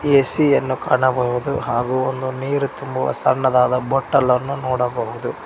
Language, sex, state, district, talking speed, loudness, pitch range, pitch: Kannada, male, Karnataka, Koppal, 100 wpm, -19 LUFS, 125-140 Hz, 130 Hz